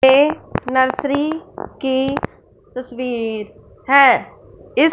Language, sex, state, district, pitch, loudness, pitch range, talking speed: Hindi, female, Punjab, Fazilka, 265 Hz, -18 LUFS, 255-285 Hz, 75 wpm